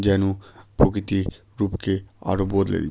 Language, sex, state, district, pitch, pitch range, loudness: Bengali, male, West Bengal, Malda, 100 Hz, 95-100 Hz, -24 LUFS